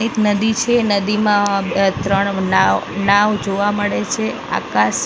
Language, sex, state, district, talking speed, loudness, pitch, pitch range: Gujarati, female, Maharashtra, Mumbai Suburban, 140 wpm, -17 LUFS, 200 Hz, 190-210 Hz